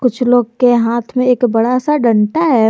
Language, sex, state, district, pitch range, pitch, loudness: Hindi, female, Jharkhand, Garhwa, 235-250 Hz, 245 Hz, -13 LUFS